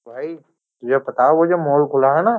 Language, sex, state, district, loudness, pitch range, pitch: Hindi, male, Uttar Pradesh, Jyotiba Phule Nagar, -16 LUFS, 135-165 Hz, 145 Hz